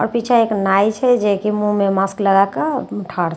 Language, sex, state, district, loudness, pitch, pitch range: Maithili, female, Bihar, Katihar, -17 LUFS, 205 Hz, 195-230 Hz